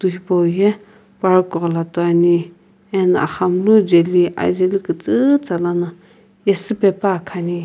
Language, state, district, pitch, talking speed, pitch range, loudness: Sumi, Nagaland, Kohima, 185 Hz, 110 wpm, 175-200 Hz, -17 LUFS